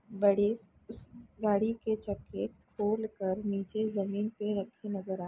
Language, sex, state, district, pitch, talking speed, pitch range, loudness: Hindi, female, Bihar, Jamui, 205 Hz, 135 wpm, 200-215 Hz, -33 LUFS